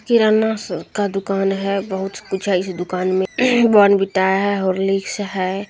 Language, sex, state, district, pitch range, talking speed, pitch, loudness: Hindi, female, Bihar, Jamui, 190-205 Hz, 145 wpm, 195 Hz, -18 LUFS